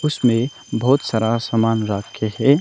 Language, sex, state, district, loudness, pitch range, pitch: Hindi, male, Arunachal Pradesh, Longding, -19 LUFS, 110-135 Hz, 115 Hz